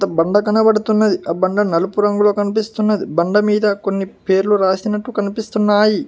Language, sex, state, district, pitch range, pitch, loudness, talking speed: Telugu, male, Telangana, Hyderabad, 195-215 Hz, 205 Hz, -16 LUFS, 130 wpm